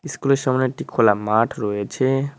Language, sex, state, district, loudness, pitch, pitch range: Bengali, male, West Bengal, Cooch Behar, -20 LUFS, 130 Hz, 105-140 Hz